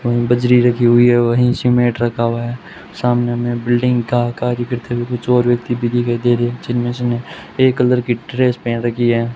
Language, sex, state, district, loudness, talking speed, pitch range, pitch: Hindi, male, Rajasthan, Bikaner, -16 LUFS, 220 wpm, 120-125 Hz, 120 Hz